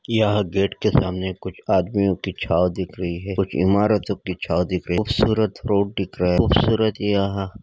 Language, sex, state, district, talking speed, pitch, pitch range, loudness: Hindi, male, Uttarakhand, Uttarkashi, 210 wpm, 100 Hz, 90-105 Hz, -21 LUFS